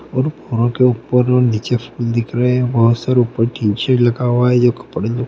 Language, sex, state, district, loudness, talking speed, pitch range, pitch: Hindi, male, Bihar, Gopalganj, -16 LUFS, 260 wpm, 115-125 Hz, 120 Hz